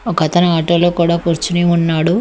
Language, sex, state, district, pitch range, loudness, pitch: Telugu, female, Telangana, Hyderabad, 165-175 Hz, -14 LUFS, 170 Hz